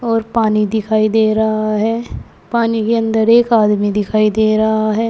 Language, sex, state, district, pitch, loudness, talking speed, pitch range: Hindi, female, Uttar Pradesh, Saharanpur, 220 Hz, -14 LUFS, 175 wpm, 215-225 Hz